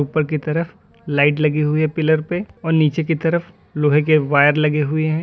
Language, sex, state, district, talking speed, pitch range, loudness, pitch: Hindi, male, Uttar Pradesh, Lalitpur, 220 wpm, 150-160 Hz, -18 LUFS, 155 Hz